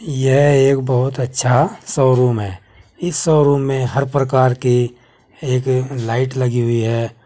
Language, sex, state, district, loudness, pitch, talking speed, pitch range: Hindi, male, Uttar Pradesh, Saharanpur, -16 LUFS, 130 Hz, 140 wpm, 120-135 Hz